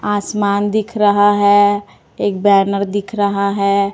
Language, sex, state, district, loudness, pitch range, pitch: Hindi, female, Chhattisgarh, Raipur, -15 LUFS, 200-205 Hz, 205 Hz